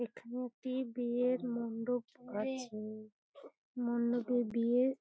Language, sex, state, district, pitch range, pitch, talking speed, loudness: Bengali, female, West Bengal, Paschim Medinipur, 235-250 Hz, 245 Hz, 95 wpm, -37 LUFS